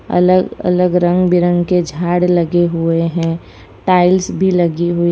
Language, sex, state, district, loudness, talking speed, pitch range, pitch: Hindi, female, Gujarat, Valsad, -14 LUFS, 150 wpm, 170-180 Hz, 175 Hz